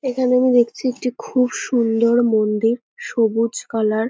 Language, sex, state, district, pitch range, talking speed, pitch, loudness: Bengali, female, West Bengal, North 24 Parganas, 225-250 Hz, 145 wpm, 240 Hz, -19 LUFS